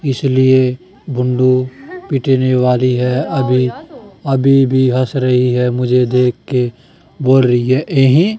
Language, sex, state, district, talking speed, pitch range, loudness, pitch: Hindi, male, Haryana, Charkhi Dadri, 130 wpm, 125-135 Hz, -14 LUFS, 130 Hz